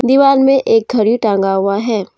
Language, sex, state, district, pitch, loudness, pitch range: Hindi, female, Jharkhand, Deoghar, 230 Hz, -13 LUFS, 205-270 Hz